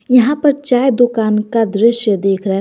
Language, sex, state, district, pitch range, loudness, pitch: Hindi, female, Jharkhand, Garhwa, 210-250 Hz, -13 LUFS, 230 Hz